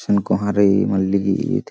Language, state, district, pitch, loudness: Kurukh, Chhattisgarh, Jashpur, 100 Hz, -18 LUFS